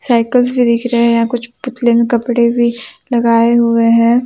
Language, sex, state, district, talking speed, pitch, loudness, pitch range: Hindi, female, Jharkhand, Deoghar, 195 wpm, 235 Hz, -12 LUFS, 235-245 Hz